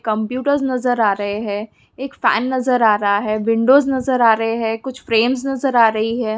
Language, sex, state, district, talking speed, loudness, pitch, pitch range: Hindi, female, Bihar, Jamui, 205 wpm, -17 LUFS, 230 Hz, 220-260 Hz